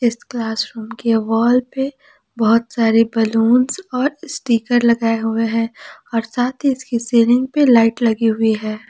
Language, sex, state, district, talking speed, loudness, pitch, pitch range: Hindi, female, Jharkhand, Palamu, 160 wpm, -17 LUFS, 235 Hz, 225-250 Hz